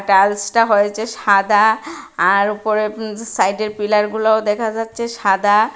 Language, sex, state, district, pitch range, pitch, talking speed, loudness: Bengali, female, Tripura, West Tripura, 205-220 Hz, 215 Hz, 115 wpm, -16 LUFS